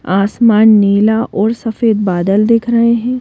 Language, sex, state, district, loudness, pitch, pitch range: Hindi, female, Madhya Pradesh, Bhopal, -12 LUFS, 220 Hz, 205-230 Hz